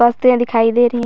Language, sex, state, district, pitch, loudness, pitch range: Hindi, female, Chhattisgarh, Raigarh, 240 Hz, -14 LUFS, 235-240 Hz